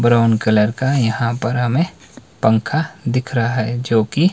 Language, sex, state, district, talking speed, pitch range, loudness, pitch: Hindi, male, Himachal Pradesh, Shimla, 165 wpm, 115-130 Hz, -18 LUFS, 120 Hz